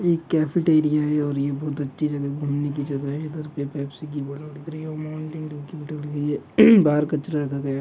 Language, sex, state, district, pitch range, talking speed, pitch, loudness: Hindi, male, Uttar Pradesh, Gorakhpur, 145-155 Hz, 240 wpm, 150 Hz, -23 LUFS